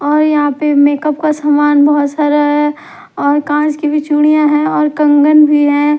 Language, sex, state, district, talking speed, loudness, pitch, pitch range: Hindi, female, Bihar, Patna, 190 wpm, -11 LUFS, 295 Hz, 290-300 Hz